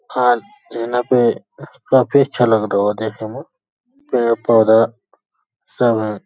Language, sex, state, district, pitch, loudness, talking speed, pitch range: Hindi, male, Uttar Pradesh, Hamirpur, 115 Hz, -16 LUFS, 125 wpm, 110-125 Hz